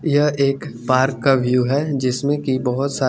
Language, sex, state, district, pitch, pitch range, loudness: Hindi, male, Chandigarh, Chandigarh, 135 Hz, 130-140 Hz, -19 LUFS